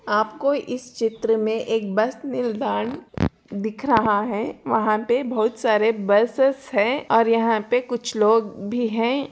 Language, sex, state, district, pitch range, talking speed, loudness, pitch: Hindi, female, Bihar, Purnia, 215-250 Hz, 150 wpm, -22 LUFS, 225 Hz